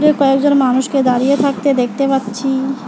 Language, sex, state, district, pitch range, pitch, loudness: Bengali, female, West Bengal, Alipurduar, 260-280 Hz, 270 Hz, -14 LUFS